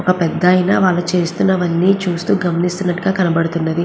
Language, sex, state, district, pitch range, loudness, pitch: Telugu, female, Andhra Pradesh, Guntur, 170-185 Hz, -16 LUFS, 180 Hz